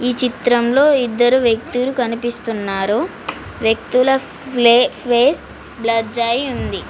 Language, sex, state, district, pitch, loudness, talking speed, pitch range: Telugu, female, Telangana, Mahabubabad, 240 Hz, -16 LUFS, 95 wpm, 230-250 Hz